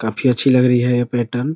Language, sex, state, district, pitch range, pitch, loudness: Hindi, male, Bihar, Araria, 120-125 Hz, 125 Hz, -16 LUFS